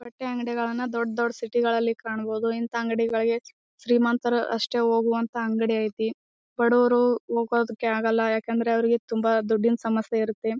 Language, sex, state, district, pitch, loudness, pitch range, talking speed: Kannada, female, Karnataka, Bijapur, 230 Hz, -25 LUFS, 225-235 Hz, 135 wpm